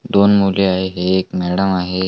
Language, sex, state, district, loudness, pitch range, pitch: Marathi, male, Maharashtra, Washim, -16 LUFS, 90-95 Hz, 95 Hz